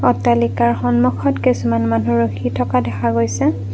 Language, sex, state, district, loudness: Assamese, female, Assam, Kamrup Metropolitan, -17 LUFS